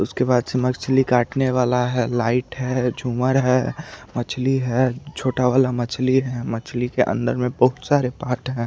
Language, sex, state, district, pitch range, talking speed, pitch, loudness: Hindi, male, Chandigarh, Chandigarh, 125-130 Hz, 150 wpm, 125 Hz, -21 LUFS